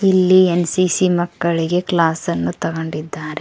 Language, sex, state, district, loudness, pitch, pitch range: Kannada, female, Karnataka, Koppal, -17 LUFS, 170 Hz, 160-185 Hz